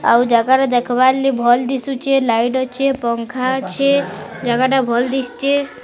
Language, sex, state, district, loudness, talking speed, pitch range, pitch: Odia, female, Odisha, Sambalpur, -16 LUFS, 155 wpm, 240-270 Hz, 260 Hz